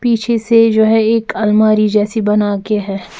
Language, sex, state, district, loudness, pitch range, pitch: Hindi, female, Bihar, Patna, -13 LUFS, 210-225 Hz, 215 Hz